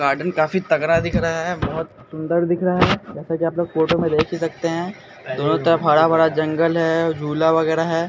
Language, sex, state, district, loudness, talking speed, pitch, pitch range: Hindi, male, Bihar, Katihar, -19 LUFS, 215 wpm, 165 Hz, 160-170 Hz